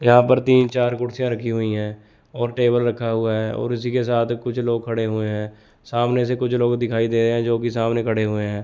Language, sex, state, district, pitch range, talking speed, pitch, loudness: Hindi, male, Chandigarh, Chandigarh, 110-120 Hz, 245 wpm, 120 Hz, -21 LUFS